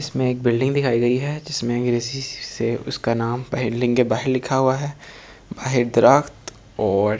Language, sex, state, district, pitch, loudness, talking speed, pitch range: Hindi, male, Delhi, New Delhi, 125 Hz, -21 LUFS, 160 wpm, 120-130 Hz